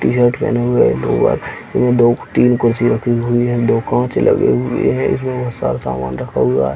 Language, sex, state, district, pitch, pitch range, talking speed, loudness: Hindi, male, Chhattisgarh, Bilaspur, 120 Hz, 115-120 Hz, 205 wpm, -15 LUFS